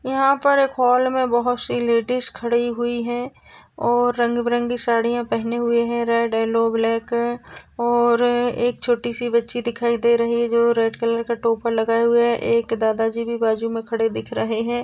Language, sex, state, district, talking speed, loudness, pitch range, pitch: Hindi, female, Maharashtra, Sindhudurg, 190 wpm, -20 LUFS, 230-240 Hz, 235 Hz